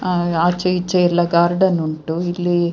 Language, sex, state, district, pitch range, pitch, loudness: Kannada, female, Karnataka, Dakshina Kannada, 170-180 Hz, 175 Hz, -18 LUFS